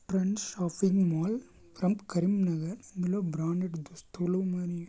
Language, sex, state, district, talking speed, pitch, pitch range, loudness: Telugu, male, Telangana, Karimnagar, 110 wpm, 180 Hz, 175-195 Hz, -31 LUFS